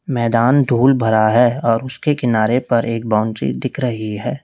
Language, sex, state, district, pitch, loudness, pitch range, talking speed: Hindi, male, Uttar Pradesh, Lalitpur, 120 Hz, -16 LUFS, 115-130 Hz, 175 wpm